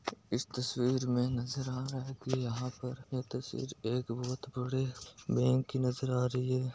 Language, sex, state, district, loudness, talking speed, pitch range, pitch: Marwari, male, Rajasthan, Nagaur, -35 LUFS, 175 wpm, 125-130 Hz, 125 Hz